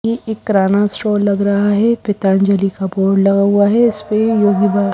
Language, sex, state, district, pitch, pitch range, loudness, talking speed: Hindi, female, Bihar, Katihar, 205 Hz, 195-215 Hz, -14 LUFS, 195 wpm